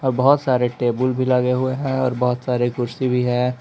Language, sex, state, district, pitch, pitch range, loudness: Hindi, male, Jharkhand, Palamu, 125 Hz, 125-130 Hz, -20 LUFS